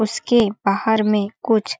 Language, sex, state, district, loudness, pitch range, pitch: Hindi, female, Chhattisgarh, Balrampur, -19 LUFS, 210-220 Hz, 220 Hz